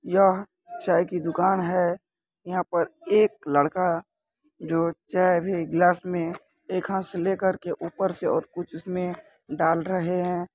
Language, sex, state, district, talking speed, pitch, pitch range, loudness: Hindi, male, Bihar, Jahanabad, 155 wpm, 180 Hz, 170-190 Hz, -25 LUFS